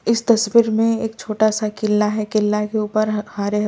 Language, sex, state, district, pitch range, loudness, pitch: Hindi, male, Delhi, New Delhi, 210-220 Hz, -19 LUFS, 215 Hz